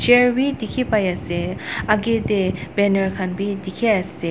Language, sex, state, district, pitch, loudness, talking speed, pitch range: Nagamese, female, Nagaland, Dimapur, 200 Hz, -20 LUFS, 125 wpm, 185-230 Hz